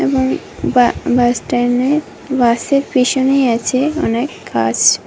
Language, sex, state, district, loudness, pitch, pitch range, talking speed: Bengali, female, Tripura, West Tripura, -15 LUFS, 255 Hz, 240-275 Hz, 85 wpm